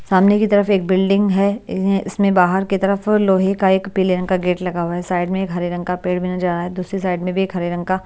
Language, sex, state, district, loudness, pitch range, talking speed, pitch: Hindi, female, Bihar, Patna, -18 LUFS, 180-195 Hz, 305 wpm, 190 Hz